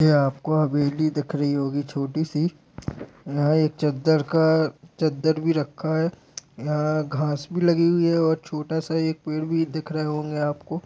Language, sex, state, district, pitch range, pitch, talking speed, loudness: Hindi, male, Uttar Pradesh, Deoria, 150-160 Hz, 155 Hz, 175 wpm, -23 LUFS